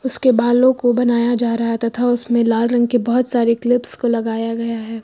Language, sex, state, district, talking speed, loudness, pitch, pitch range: Hindi, female, Uttar Pradesh, Lucknow, 225 wpm, -17 LUFS, 240 Hz, 230-245 Hz